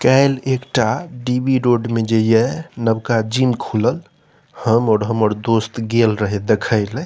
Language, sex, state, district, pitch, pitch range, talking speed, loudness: Maithili, male, Bihar, Saharsa, 115 Hz, 110-130 Hz, 145 wpm, -17 LUFS